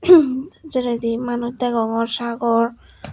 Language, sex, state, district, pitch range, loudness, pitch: Chakma, female, Tripura, Unakoti, 230-260 Hz, -20 LUFS, 240 Hz